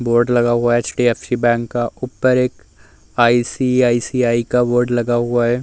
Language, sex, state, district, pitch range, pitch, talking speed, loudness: Hindi, male, Uttar Pradesh, Muzaffarnagar, 120-125 Hz, 120 Hz, 150 wpm, -17 LUFS